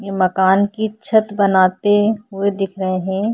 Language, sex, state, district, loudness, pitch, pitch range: Hindi, female, Maharashtra, Chandrapur, -17 LUFS, 200 Hz, 190-210 Hz